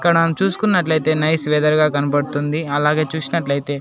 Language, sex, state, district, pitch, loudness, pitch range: Telugu, male, Andhra Pradesh, Annamaya, 155 Hz, -17 LUFS, 145-165 Hz